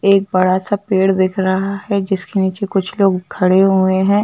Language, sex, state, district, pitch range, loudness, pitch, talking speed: Hindi, female, Madhya Pradesh, Bhopal, 190-200 Hz, -15 LUFS, 195 Hz, 200 wpm